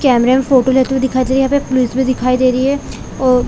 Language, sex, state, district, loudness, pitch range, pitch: Hindi, female, Chhattisgarh, Bilaspur, -14 LUFS, 255-265 Hz, 260 Hz